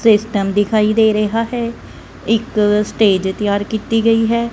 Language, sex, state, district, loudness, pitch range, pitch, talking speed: Punjabi, female, Punjab, Kapurthala, -16 LUFS, 205-225 Hz, 220 Hz, 145 wpm